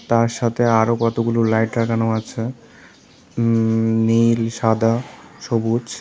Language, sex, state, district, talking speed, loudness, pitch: Bengali, male, Tripura, South Tripura, 110 wpm, -19 LUFS, 115 Hz